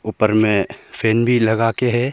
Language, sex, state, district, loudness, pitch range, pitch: Hindi, male, Arunachal Pradesh, Papum Pare, -17 LUFS, 110-120 Hz, 115 Hz